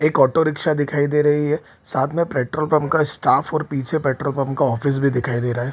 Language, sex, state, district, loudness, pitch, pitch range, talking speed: Hindi, male, Bihar, Araria, -20 LUFS, 145 Hz, 135-155 Hz, 230 wpm